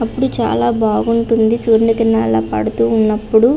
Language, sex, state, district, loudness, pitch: Telugu, female, Andhra Pradesh, Visakhapatnam, -14 LUFS, 220 Hz